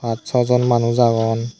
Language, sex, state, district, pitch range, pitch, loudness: Chakma, male, Tripura, Dhalai, 115-125 Hz, 120 Hz, -17 LUFS